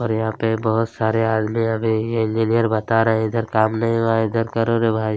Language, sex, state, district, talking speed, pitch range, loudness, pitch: Hindi, male, Chhattisgarh, Kabirdham, 255 wpm, 110-115 Hz, -20 LUFS, 115 Hz